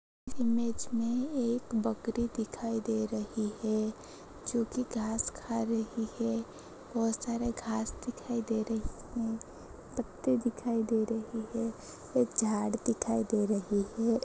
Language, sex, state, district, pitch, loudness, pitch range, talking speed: Hindi, female, Uttar Pradesh, Ghazipur, 230 Hz, -33 LUFS, 220-235 Hz, 135 wpm